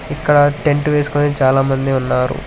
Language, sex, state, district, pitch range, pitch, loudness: Telugu, male, Telangana, Hyderabad, 135-145 Hz, 145 Hz, -15 LUFS